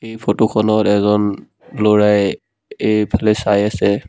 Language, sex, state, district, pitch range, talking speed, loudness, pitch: Assamese, male, Assam, Sonitpur, 100-110 Hz, 105 wpm, -16 LUFS, 105 Hz